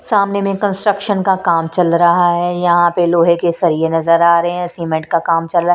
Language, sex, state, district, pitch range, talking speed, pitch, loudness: Hindi, female, Punjab, Kapurthala, 170-185 Hz, 240 wpm, 175 Hz, -14 LUFS